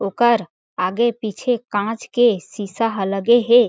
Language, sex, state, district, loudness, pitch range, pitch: Chhattisgarhi, female, Chhattisgarh, Jashpur, -19 LUFS, 200-240 Hz, 225 Hz